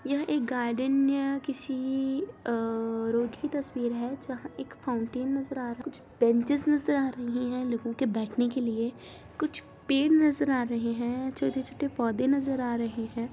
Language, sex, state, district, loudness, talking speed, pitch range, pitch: Hindi, female, Bihar, Samastipur, -29 LUFS, 170 wpm, 235-275 Hz, 255 Hz